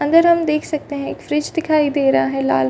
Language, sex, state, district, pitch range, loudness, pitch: Hindi, female, Chhattisgarh, Rajnandgaon, 270-310 Hz, -18 LUFS, 300 Hz